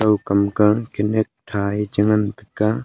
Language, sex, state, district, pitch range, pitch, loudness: Wancho, male, Arunachal Pradesh, Longding, 105-110 Hz, 105 Hz, -20 LUFS